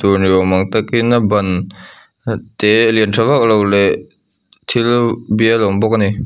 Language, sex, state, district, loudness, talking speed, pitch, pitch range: Mizo, male, Mizoram, Aizawl, -14 LUFS, 200 wpm, 110 Hz, 100-115 Hz